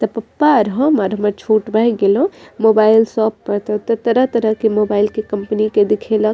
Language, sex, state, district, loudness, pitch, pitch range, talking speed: Maithili, female, Bihar, Madhepura, -15 LUFS, 215 Hz, 210-225 Hz, 225 wpm